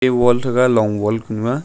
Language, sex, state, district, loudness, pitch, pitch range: Wancho, male, Arunachal Pradesh, Longding, -17 LUFS, 120 Hz, 110-125 Hz